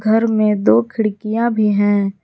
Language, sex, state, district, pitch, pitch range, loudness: Hindi, female, Jharkhand, Garhwa, 215 Hz, 205-225 Hz, -16 LUFS